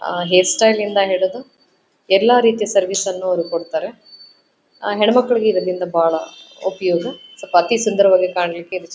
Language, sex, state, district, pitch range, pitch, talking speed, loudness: Kannada, female, Karnataka, Dharwad, 175-215 Hz, 190 Hz, 120 wpm, -17 LUFS